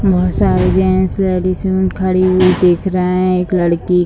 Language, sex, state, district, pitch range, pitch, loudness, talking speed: Hindi, female, Bihar, Sitamarhi, 180-185 Hz, 185 Hz, -14 LUFS, 160 wpm